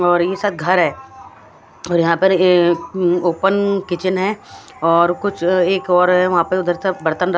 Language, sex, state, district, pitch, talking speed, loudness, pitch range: Hindi, female, Punjab, Fazilka, 180 Hz, 170 wpm, -16 LUFS, 175-190 Hz